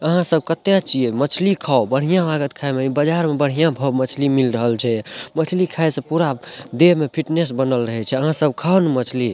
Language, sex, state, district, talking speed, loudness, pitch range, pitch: Maithili, male, Bihar, Madhepura, 220 wpm, -18 LUFS, 130-165 Hz, 145 Hz